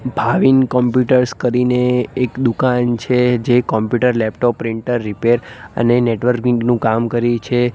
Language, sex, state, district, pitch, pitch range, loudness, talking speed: Gujarati, male, Gujarat, Gandhinagar, 120 Hz, 115-125 Hz, -16 LUFS, 130 wpm